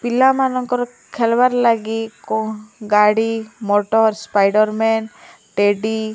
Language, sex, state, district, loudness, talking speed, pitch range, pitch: Odia, female, Odisha, Malkangiri, -17 LUFS, 95 wpm, 215-235 Hz, 220 Hz